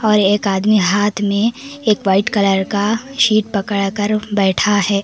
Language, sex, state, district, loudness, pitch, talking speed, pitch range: Hindi, female, Karnataka, Koppal, -16 LUFS, 205 Hz, 165 wpm, 200-215 Hz